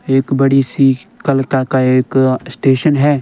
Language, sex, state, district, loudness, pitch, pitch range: Hindi, male, Himachal Pradesh, Shimla, -14 LUFS, 135 Hz, 130-135 Hz